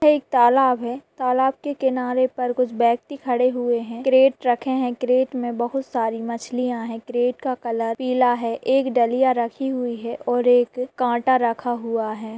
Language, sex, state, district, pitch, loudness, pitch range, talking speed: Hindi, female, Bihar, Saharsa, 245 Hz, -21 LUFS, 235-260 Hz, 185 wpm